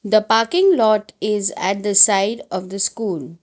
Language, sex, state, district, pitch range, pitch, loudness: English, female, Gujarat, Valsad, 195-220 Hz, 205 Hz, -17 LUFS